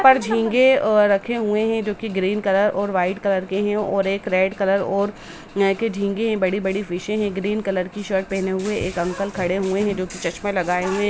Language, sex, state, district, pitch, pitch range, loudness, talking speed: Hindi, female, Bihar, Samastipur, 200 Hz, 190-210 Hz, -21 LUFS, 240 wpm